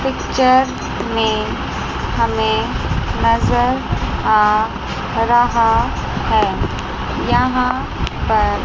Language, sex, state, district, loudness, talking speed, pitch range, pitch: Hindi, female, Chandigarh, Chandigarh, -17 LUFS, 60 wpm, 210-250 Hz, 225 Hz